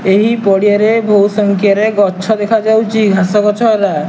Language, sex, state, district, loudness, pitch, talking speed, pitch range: Odia, male, Odisha, Nuapada, -11 LUFS, 210 Hz, 145 wpm, 200-220 Hz